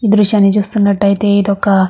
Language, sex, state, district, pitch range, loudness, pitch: Telugu, female, Andhra Pradesh, Guntur, 200-210 Hz, -12 LUFS, 200 Hz